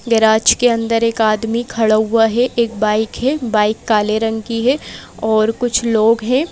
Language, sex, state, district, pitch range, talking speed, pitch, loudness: Hindi, female, Madhya Pradesh, Bhopal, 220-235 Hz, 185 wpm, 225 Hz, -15 LUFS